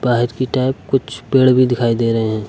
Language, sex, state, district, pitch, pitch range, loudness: Hindi, male, Uttar Pradesh, Lucknow, 125 Hz, 115-130 Hz, -16 LUFS